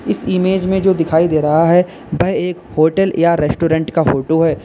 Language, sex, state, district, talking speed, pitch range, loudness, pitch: Hindi, male, Uttar Pradesh, Lalitpur, 205 wpm, 160-180 Hz, -15 LUFS, 165 Hz